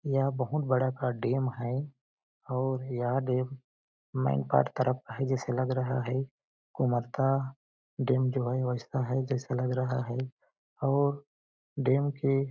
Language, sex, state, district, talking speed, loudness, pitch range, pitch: Hindi, male, Chhattisgarh, Balrampur, 145 wpm, -30 LUFS, 125-135 Hz, 130 Hz